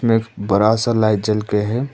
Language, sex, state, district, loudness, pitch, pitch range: Hindi, male, Arunachal Pradesh, Papum Pare, -18 LUFS, 110 Hz, 105-115 Hz